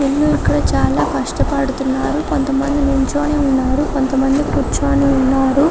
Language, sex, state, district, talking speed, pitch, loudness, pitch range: Telugu, female, Telangana, Karimnagar, 135 wpm, 275 Hz, -16 LUFS, 270-285 Hz